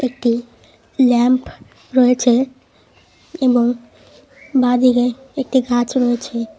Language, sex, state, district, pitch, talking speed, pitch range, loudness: Bengali, female, West Bengal, Cooch Behar, 250 Hz, 75 wpm, 240-260 Hz, -17 LUFS